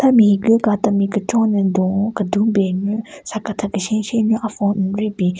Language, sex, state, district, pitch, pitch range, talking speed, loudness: Rengma, female, Nagaland, Kohima, 210 Hz, 200-220 Hz, 190 wpm, -18 LUFS